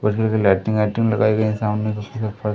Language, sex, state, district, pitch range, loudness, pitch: Hindi, male, Madhya Pradesh, Umaria, 105-110 Hz, -20 LUFS, 110 Hz